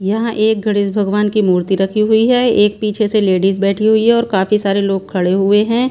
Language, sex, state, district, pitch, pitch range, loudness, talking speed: Hindi, female, Bihar, Patna, 210 Hz, 195-220 Hz, -14 LUFS, 235 wpm